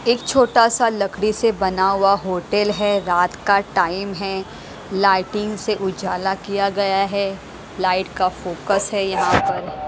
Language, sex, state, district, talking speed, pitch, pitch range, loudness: Hindi, female, Haryana, Jhajjar, 145 wpm, 200 Hz, 190-205 Hz, -19 LUFS